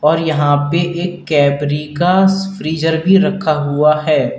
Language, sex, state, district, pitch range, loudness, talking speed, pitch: Hindi, male, Uttar Pradesh, Lalitpur, 150-180 Hz, -14 LUFS, 165 wpm, 160 Hz